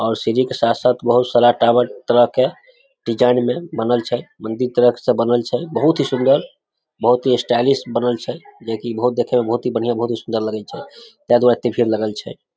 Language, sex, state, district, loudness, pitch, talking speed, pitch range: Maithili, male, Bihar, Samastipur, -17 LUFS, 120 Hz, 225 wpm, 115-125 Hz